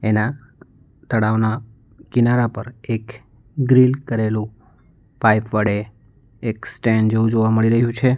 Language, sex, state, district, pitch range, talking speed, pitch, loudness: Gujarati, male, Gujarat, Valsad, 110-120 Hz, 115 wpm, 115 Hz, -19 LUFS